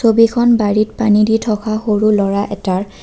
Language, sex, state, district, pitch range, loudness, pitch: Assamese, female, Assam, Kamrup Metropolitan, 205-225 Hz, -14 LUFS, 215 Hz